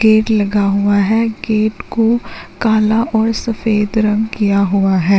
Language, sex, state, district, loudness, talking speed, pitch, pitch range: Hindi, female, Uttarakhand, Uttarkashi, -15 LUFS, 150 wpm, 215 Hz, 205-225 Hz